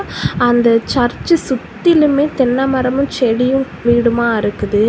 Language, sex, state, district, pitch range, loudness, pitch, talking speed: Tamil, female, Tamil Nadu, Kanyakumari, 235-270 Hz, -14 LUFS, 250 Hz, 85 wpm